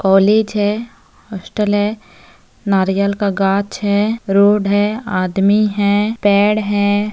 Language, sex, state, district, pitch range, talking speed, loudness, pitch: Hindi, female, Jharkhand, Sahebganj, 200-210 Hz, 120 wpm, -15 LUFS, 205 Hz